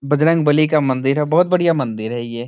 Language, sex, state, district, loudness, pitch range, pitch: Hindi, male, Bihar, Saran, -16 LUFS, 130-160 Hz, 150 Hz